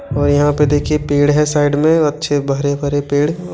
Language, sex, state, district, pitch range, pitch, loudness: Angika, male, Bihar, Begusarai, 145-150 Hz, 145 Hz, -15 LUFS